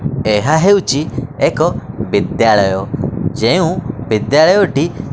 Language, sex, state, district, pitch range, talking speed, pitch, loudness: Odia, male, Odisha, Khordha, 110-155 Hz, 70 wpm, 140 Hz, -14 LUFS